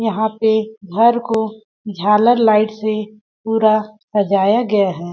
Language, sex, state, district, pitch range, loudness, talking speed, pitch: Hindi, female, Chhattisgarh, Balrampur, 210-220 Hz, -16 LUFS, 130 wpm, 215 Hz